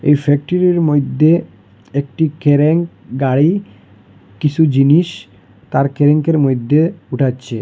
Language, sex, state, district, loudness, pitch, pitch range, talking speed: Bengali, male, Assam, Hailakandi, -14 LUFS, 145 Hz, 125-160 Hz, 95 wpm